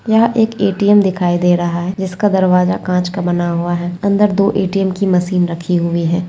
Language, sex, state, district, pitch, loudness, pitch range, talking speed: Hindi, female, Uttarakhand, Tehri Garhwal, 180 Hz, -15 LUFS, 175-200 Hz, 210 wpm